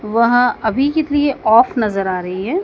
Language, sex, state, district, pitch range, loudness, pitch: Hindi, female, Madhya Pradesh, Dhar, 215-285 Hz, -15 LUFS, 230 Hz